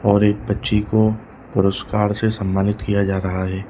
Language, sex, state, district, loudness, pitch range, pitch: Hindi, male, Bihar, Jahanabad, -19 LUFS, 95-105 Hz, 105 Hz